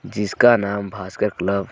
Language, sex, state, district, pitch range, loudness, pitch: Hindi, male, Jharkhand, Garhwa, 100-105 Hz, -19 LUFS, 100 Hz